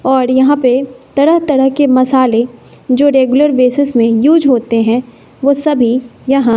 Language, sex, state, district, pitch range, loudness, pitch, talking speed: Hindi, female, Bihar, West Champaran, 250-280 Hz, -11 LUFS, 260 Hz, 155 wpm